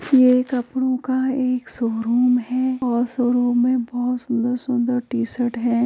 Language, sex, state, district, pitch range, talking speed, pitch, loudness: Hindi, female, Uttar Pradesh, Jyotiba Phule Nagar, 240-255 Hz, 145 wpm, 245 Hz, -20 LUFS